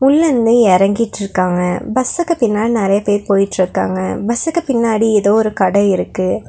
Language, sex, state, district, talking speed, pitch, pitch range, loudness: Tamil, female, Tamil Nadu, Nilgiris, 120 wpm, 210 Hz, 190-235 Hz, -14 LUFS